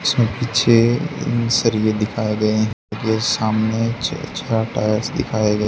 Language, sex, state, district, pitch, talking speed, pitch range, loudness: Hindi, male, Haryana, Charkhi Dadri, 110 Hz, 150 wpm, 110-120 Hz, -19 LUFS